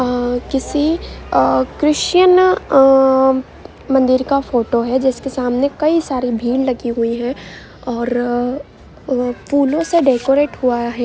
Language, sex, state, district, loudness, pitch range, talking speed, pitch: Hindi, female, Bihar, Jamui, -16 LUFS, 245-280 Hz, 125 wpm, 260 Hz